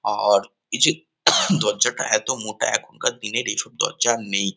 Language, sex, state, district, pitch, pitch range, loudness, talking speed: Bengali, male, West Bengal, Kolkata, 105 Hz, 100-105 Hz, -21 LUFS, 170 wpm